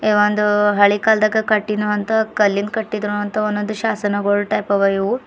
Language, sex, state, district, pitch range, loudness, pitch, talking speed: Kannada, female, Karnataka, Bidar, 205-215 Hz, -17 LUFS, 210 Hz, 150 wpm